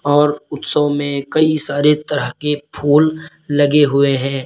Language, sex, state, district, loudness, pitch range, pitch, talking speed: Hindi, male, Uttar Pradesh, Lalitpur, -15 LUFS, 145-150 Hz, 145 Hz, 150 wpm